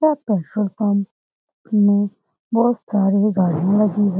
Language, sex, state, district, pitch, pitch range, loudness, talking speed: Hindi, female, Bihar, Lakhisarai, 205 Hz, 195-215 Hz, -19 LUFS, 70 wpm